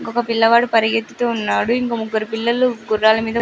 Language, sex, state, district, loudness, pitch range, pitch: Telugu, female, Andhra Pradesh, Sri Satya Sai, -17 LUFS, 220-235 Hz, 225 Hz